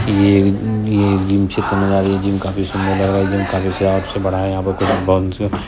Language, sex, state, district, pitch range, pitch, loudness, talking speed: Hindi, female, Bihar, Purnia, 95-100 Hz, 95 Hz, -16 LUFS, 230 wpm